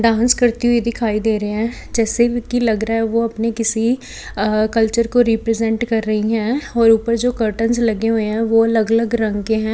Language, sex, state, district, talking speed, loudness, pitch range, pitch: Hindi, female, Chhattisgarh, Raipur, 210 wpm, -17 LUFS, 220-235 Hz, 225 Hz